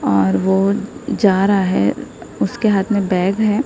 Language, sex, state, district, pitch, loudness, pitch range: Hindi, female, Maharashtra, Gondia, 200 Hz, -17 LUFS, 190-210 Hz